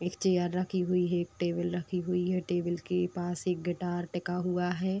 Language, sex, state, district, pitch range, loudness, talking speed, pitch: Hindi, female, Uttar Pradesh, Deoria, 175-180 Hz, -31 LUFS, 215 wpm, 180 Hz